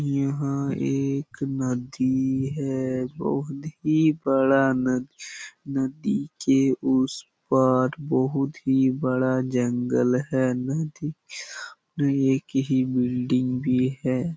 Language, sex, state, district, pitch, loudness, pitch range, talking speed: Hindi, male, Chhattisgarh, Bastar, 135 Hz, -24 LUFS, 130-140 Hz, 100 wpm